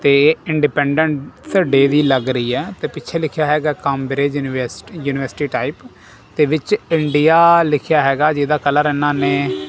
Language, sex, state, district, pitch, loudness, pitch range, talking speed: Punjabi, male, Punjab, Kapurthala, 145 Hz, -16 LUFS, 140-155 Hz, 125 wpm